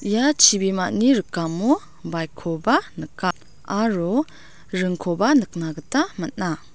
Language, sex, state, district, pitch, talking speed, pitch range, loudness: Garo, female, Meghalaya, South Garo Hills, 205 Hz, 100 wpm, 175-275 Hz, -21 LUFS